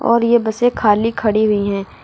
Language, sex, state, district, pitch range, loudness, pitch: Hindi, female, Uttar Pradesh, Lucknow, 210-235 Hz, -16 LUFS, 220 Hz